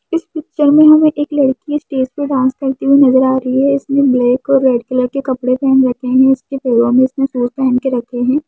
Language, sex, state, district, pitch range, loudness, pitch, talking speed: Hindi, female, Uttarakhand, Tehri Garhwal, 255-280 Hz, -13 LUFS, 265 Hz, 240 wpm